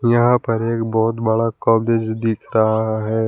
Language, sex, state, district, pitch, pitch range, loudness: Hindi, male, Jharkhand, Palamu, 115 Hz, 110-115 Hz, -18 LUFS